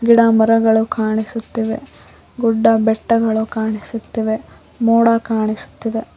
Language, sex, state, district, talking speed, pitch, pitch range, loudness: Kannada, female, Karnataka, Koppal, 70 wpm, 225 Hz, 220-230 Hz, -17 LUFS